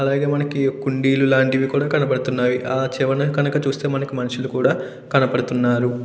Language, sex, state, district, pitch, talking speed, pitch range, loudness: Telugu, male, Andhra Pradesh, Krishna, 135 Hz, 150 wpm, 130-140 Hz, -20 LUFS